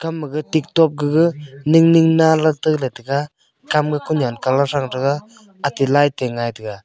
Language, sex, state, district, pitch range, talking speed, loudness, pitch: Wancho, male, Arunachal Pradesh, Longding, 135-160 Hz, 185 wpm, -17 LUFS, 150 Hz